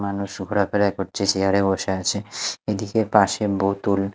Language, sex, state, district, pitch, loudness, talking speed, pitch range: Bengali, male, Odisha, Nuapada, 100 Hz, -22 LUFS, 145 wpm, 95-105 Hz